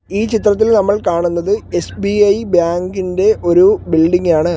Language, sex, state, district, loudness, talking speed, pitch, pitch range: Malayalam, male, Kerala, Kollam, -14 LUFS, 130 wpm, 195 Hz, 175-210 Hz